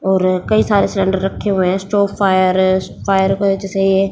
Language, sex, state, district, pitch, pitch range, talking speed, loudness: Hindi, female, Haryana, Jhajjar, 195 Hz, 190-195 Hz, 220 wpm, -15 LUFS